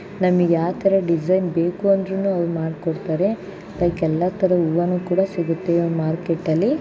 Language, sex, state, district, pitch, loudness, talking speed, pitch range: Kannada, female, Karnataka, Shimoga, 175 Hz, -20 LUFS, 130 wpm, 165-190 Hz